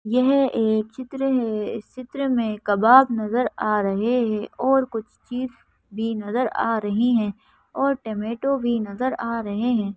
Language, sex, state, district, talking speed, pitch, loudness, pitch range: Hindi, female, Madhya Pradesh, Bhopal, 160 wpm, 235 Hz, -22 LUFS, 215-255 Hz